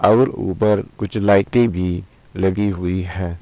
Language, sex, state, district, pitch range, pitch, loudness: Hindi, male, Uttar Pradesh, Saharanpur, 90-105 Hz, 100 Hz, -19 LUFS